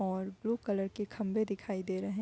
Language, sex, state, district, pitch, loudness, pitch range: Hindi, female, Bihar, Gopalganj, 200 Hz, -36 LUFS, 190-215 Hz